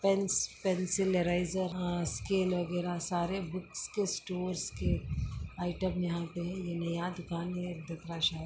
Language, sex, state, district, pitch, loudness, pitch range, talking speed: Hindi, female, Chhattisgarh, Bastar, 175 Hz, -34 LUFS, 170-185 Hz, 150 wpm